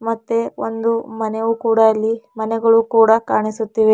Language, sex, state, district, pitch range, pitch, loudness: Kannada, female, Karnataka, Bidar, 220-230 Hz, 225 Hz, -17 LUFS